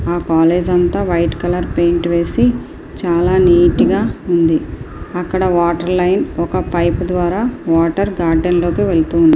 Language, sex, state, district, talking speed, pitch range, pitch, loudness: Telugu, female, Andhra Pradesh, Srikakulam, 70 wpm, 170-180 Hz, 175 Hz, -15 LUFS